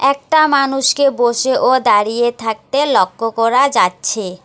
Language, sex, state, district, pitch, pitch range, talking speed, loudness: Bengali, female, West Bengal, Alipurduar, 245 Hz, 225-275 Hz, 120 wpm, -14 LUFS